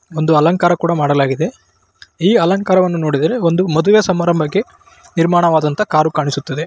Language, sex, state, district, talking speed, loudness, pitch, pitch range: Kannada, male, Karnataka, Raichur, 115 wpm, -14 LUFS, 165 Hz, 150-180 Hz